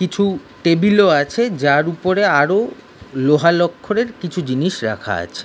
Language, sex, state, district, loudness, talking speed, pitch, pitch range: Bengali, male, West Bengal, Kolkata, -17 LUFS, 145 wpm, 170 Hz, 140-200 Hz